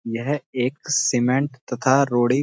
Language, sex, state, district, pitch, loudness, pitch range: Hindi, male, Uttarakhand, Uttarkashi, 130 Hz, -21 LUFS, 125-140 Hz